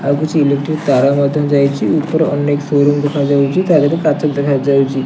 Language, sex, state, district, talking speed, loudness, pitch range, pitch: Odia, male, Odisha, Nuapada, 200 wpm, -14 LUFS, 140-150 Hz, 145 Hz